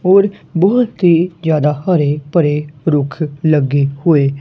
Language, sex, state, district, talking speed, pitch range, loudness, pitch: Punjabi, male, Punjab, Kapurthala, 120 wpm, 145-180 Hz, -14 LUFS, 155 Hz